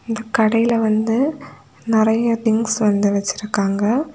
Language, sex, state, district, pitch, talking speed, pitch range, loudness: Tamil, female, Tamil Nadu, Kanyakumari, 220 Hz, 100 wpm, 210-230 Hz, -18 LUFS